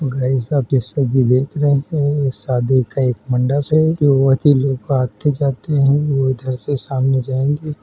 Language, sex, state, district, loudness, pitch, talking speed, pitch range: Hindi, male, Uttar Pradesh, Hamirpur, -17 LUFS, 135 Hz, 200 wpm, 130-145 Hz